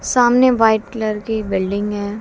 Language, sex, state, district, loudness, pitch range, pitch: Hindi, female, Haryana, Jhajjar, -17 LUFS, 205-230 Hz, 220 Hz